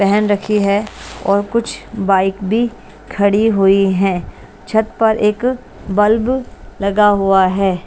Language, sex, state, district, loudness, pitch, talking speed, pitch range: Hindi, female, Bihar, West Champaran, -15 LUFS, 205 Hz, 130 wpm, 195-220 Hz